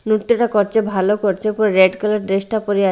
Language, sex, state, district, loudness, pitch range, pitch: Bengali, female, Odisha, Malkangiri, -17 LUFS, 195-215 Hz, 210 Hz